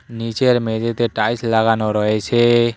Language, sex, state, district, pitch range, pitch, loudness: Bengali, male, West Bengal, Cooch Behar, 110-120 Hz, 115 Hz, -17 LUFS